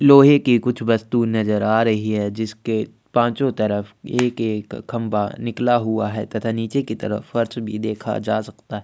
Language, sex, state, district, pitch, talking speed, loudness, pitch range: Hindi, male, Chhattisgarh, Kabirdham, 110 Hz, 190 wpm, -20 LUFS, 105-120 Hz